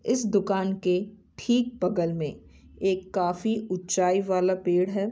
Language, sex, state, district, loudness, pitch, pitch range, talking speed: Hindi, female, Bihar, Saran, -26 LUFS, 190 Hz, 180-205 Hz, 150 wpm